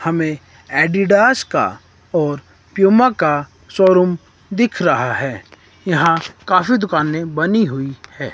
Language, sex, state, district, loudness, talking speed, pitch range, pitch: Hindi, male, Himachal Pradesh, Shimla, -16 LUFS, 115 wpm, 135-195 Hz, 165 Hz